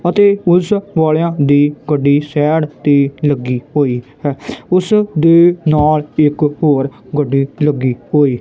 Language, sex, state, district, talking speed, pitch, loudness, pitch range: Punjabi, male, Punjab, Kapurthala, 135 wpm, 150 Hz, -13 LUFS, 145-165 Hz